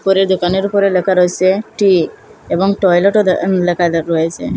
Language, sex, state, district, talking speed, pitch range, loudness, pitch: Bengali, female, Assam, Hailakandi, 170 wpm, 175-195 Hz, -14 LUFS, 185 Hz